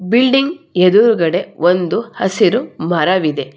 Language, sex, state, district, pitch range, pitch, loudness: Kannada, female, Karnataka, Bangalore, 170-235 Hz, 185 Hz, -14 LUFS